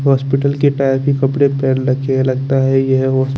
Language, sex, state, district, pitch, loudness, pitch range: Hindi, male, Chandigarh, Chandigarh, 135 Hz, -15 LUFS, 130-140 Hz